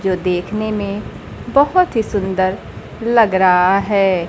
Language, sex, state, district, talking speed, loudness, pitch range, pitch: Hindi, female, Bihar, Kaimur, 125 wpm, -16 LUFS, 185-220 Hz, 200 Hz